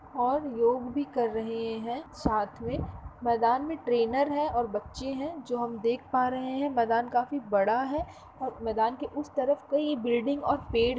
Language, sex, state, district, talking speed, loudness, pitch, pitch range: Hindi, female, Uttar Pradesh, Jalaun, 190 wpm, -29 LUFS, 245 Hz, 235-280 Hz